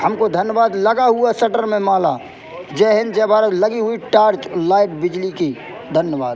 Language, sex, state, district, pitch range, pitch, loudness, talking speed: Hindi, male, Madhya Pradesh, Katni, 190-225 Hz, 215 Hz, -16 LUFS, 180 wpm